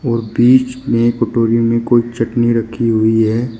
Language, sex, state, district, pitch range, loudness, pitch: Hindi, male, Uttar Pradesh, Shamli, 115-120 Hz, -14 LUFS, 115 Hz